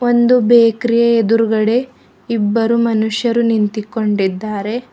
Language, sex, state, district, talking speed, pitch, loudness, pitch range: Kannada, female, Karnataka, Bidar, 75 wpm, 230 Hz, -15 LUFS, 215-235 Hz